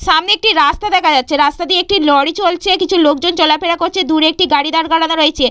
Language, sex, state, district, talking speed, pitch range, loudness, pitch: Bengali, female, West Bengal, Purulia, 215 wpm, 300-360 Hz, -12 LUFS, 325 Hz